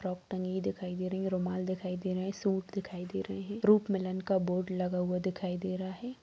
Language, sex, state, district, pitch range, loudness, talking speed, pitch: Hindi, female, Bihar, Darbhanga, 180-190 Hz, -33 LUFS, 260 wpm, 185 Hz